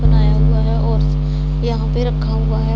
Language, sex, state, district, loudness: Hindi, female, Punjab, Pathankot, -17 LUFS